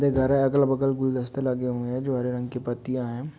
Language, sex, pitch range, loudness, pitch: Hindi, male, 125-135 Hz, -25 LUFS, 130 Hz